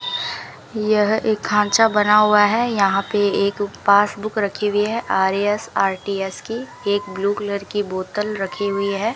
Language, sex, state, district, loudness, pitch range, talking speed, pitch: Hindi, female, Rajasthan, Bikaner, -19 LUFS, 200-215 Hz, 155 wpm, 205 Hz